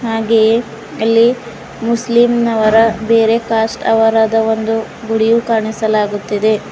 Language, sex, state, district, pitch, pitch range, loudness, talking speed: Kannada, female, Karnataka, Bidar, 225 Hz, 220-230 Hz, -13 LUFS, 80 wpm